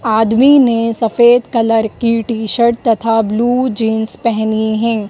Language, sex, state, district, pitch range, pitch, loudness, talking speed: Hindi, female, Madhya Pradesh, Dhar, 220-235 Hz, 230 Hz, -13 LUFS, 140 wpm